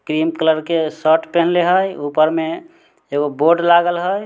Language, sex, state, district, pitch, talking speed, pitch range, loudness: Maithili, male, Bihar, Samastipur, 165 Hz, 170 wpm, 155-175 Hz, -16 LUFS